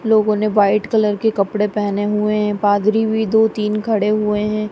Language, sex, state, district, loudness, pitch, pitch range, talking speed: Hindi, female, Punjab, Kapurthala, -17 LUFS, 210 Hz, 210-215 Hz, 205 wpm